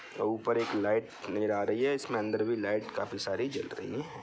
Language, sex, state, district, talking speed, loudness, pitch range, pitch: Hindi, male, Bihar, Saran, 225 wpm, -32 LUFS, 105-115 Hz, 110 Hz